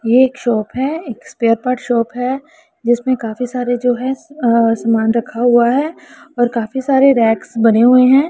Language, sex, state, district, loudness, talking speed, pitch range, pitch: Hindi, female, Punjab, Pathankot, -15 LUFS, 180 wpm, 230-265 Hz, 245 Hz